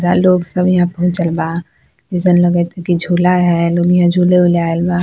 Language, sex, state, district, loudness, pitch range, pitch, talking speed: Bajjika, female, Bihar, Vaishali, -13 LUFS, 170-180 Hz, 175 Hz, 205 wpm